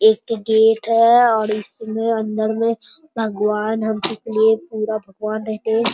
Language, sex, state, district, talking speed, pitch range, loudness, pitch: Hindi, male, Bihar, Bhagalpur, 150 wpm, 215-225 Hz, -18 LUFS, 220 Hz